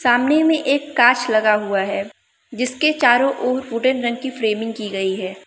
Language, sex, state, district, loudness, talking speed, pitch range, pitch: Hindi, female, Arunachal Pradesh, Lower Dibang Valley, -18 LUFS, 185 wpm, 210-265 Hz, 240 Hz